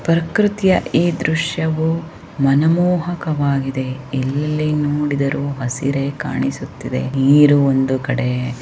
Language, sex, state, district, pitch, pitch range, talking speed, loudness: Kannada, female, Karnataka, Shimoga, 145 Hz, 135-160 Hz, 85 wpm, -18 LUFS